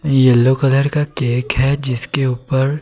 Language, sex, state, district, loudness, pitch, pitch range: Hindi, male, Himachal Pradesh, Shimla, -16 LUFS, 135 Hz, 125-140 Hz